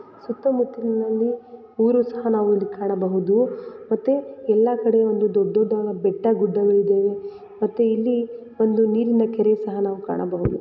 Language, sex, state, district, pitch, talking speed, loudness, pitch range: Kannada, female, Karnataka, Raichur, 220 Hz, 125 wpm, -21 LUFS, 205-235 Hz